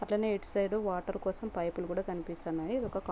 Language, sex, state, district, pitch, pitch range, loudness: Telugu, female, Andhra Pradesh, Guntur, 195 Hz, 175-205 Hz, -35 LUFS